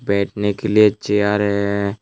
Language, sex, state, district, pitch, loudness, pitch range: Hindi, male, Tripura, West Tripura, 105 Hz, -18 LUFS, 100-105 Hz